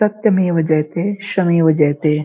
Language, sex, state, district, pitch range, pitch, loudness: Hindi, female, Uttar Pradesh, Gorakhpur, 155-200 Hz, 170 Hz, -16 LUFS